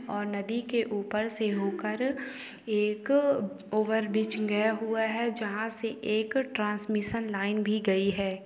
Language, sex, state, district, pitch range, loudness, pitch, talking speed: Hindi, female, Uttarakhand, Tehri Garhwal, 210-230 Hz, -29 LUFS, 215 Hz, 140 wpm